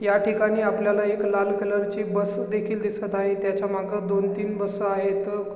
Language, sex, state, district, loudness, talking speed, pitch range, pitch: Marathi, male, Maharashtra, Chandrapur, -25 LUFS, 170 wpm, 200-205 Hz, 205 Hz